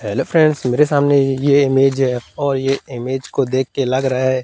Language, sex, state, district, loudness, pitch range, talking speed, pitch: Hindi, male, Madhya Pradesh, Katni, -16 LUFS, 130-140 Hz, 215 wpm, 135 Hz